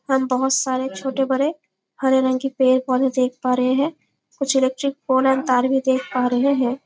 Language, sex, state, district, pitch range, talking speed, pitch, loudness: Hindi, female, Chhattisgarh, Bastar, 255-270 Hz, 210 wpm, 265 Hz, -20 LUFS